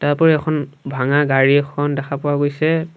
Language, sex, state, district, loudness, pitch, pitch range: Assamese, male, Assam, Sonitpur, -17 LUFS, 145 Hz, 140-155 Hz